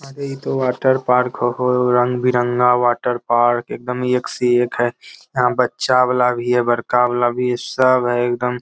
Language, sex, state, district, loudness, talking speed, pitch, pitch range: Magahi, male, Bihar, Lakhisarai, -17 LUFS, 190 wpm, 125 Hz, 120-125 Hz